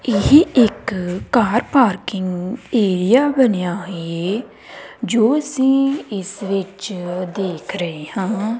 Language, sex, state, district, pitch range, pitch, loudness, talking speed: Punjabi, female, Punjab, Kapurthala, 185-240 Hz, 200 Hz, -18 LUFS, 100 wpm